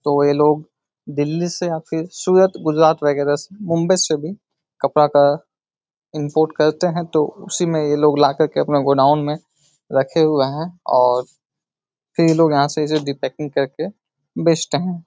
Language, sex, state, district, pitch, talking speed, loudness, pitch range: Hindi, male, Uttar Pradesh, Etah, 155 Hz, 185 wpm, -18 LUFS, 145-165 Hz